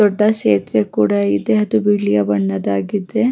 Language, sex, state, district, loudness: Kannada, female, Karnataka, Raichur, -16 LUFS